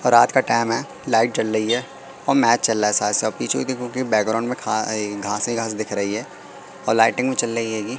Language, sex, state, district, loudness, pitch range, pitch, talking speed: Hindi, male, Madhya Pradesh, Katni, -21 LUFS, 110-125 Hz, 115 Hz, 270 wpm